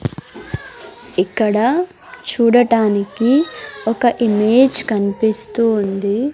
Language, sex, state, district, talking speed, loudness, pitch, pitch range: Telugu, female, Andhra Pradesh, Sri Satya Sai, 55 wpm, -16 LUFS, 230 Hz, 210-265 Hz